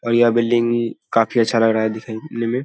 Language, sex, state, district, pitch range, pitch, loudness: Hindi, male, Bihar, Saharsa, 115-120 Hz, 115 Hz, -18 LUFS